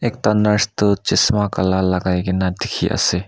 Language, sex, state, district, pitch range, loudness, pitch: Nagamese, male, Nagaland, Kohima, 95-105 Hz, -18 LUFS, 100 Hz